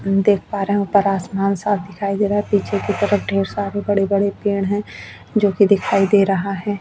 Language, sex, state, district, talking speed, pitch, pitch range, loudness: Hindi, female, Chhattisgarh, Bastar, 230 wpm, 200 Hz, 195-205 Hz, -18 LUFS